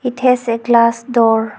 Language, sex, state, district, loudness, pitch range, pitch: English, female, Arunachal Pradesh, Longding, -14 LUFS, 230-250 Hz, 235 Hz